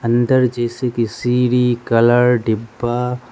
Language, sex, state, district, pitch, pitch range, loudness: Hindi, male, Arunachal Pradesh, Lower Dibang Valley, 120 Hz, 115-125 Hz, -16 LUFS